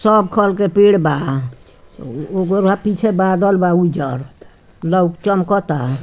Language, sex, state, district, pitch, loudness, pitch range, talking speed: Bhojpuri, female, Bihar, Muzaffarpur, 185 Hz, -15 LUFS, 150-200 Hz, 120 wpm